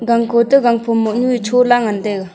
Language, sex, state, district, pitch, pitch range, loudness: Wancho, female, Arunachal Pradesh, Longding, 235 Hz, 220-245 Hz, -14 LUFS